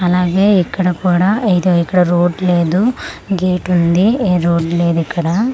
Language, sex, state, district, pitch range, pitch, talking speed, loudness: Telugu, female, Andhra Pradesh, Manyam, 175-190 Hz, 180 Hz, 130 wpm, -14 LUFS